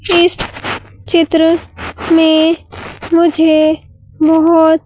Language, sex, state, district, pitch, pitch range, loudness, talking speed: Hindi, female, Madhya Pradesh, Bhopal, 325 Hz, 320-335 Hz, -12 LUFS, 60 wpm